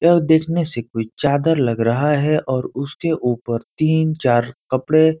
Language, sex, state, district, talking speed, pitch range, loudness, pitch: Hindi, male, Uttar Pradesh, Ghazipur, 175 wpm, 120-160 Hz, -19 LUFS, 145 Hz